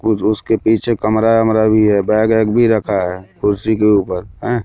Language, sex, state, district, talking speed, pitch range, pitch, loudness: Hindi, male, Madhya Pradesh, Katni, 205 wpm, 105-110 Hz, 110 Hz, -15 LUFS